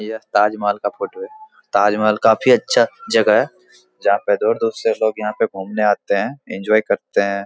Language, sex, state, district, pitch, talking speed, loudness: Hindi, male, Bihar, Araria, 110 Hz, 175 wpm, -18 LUFS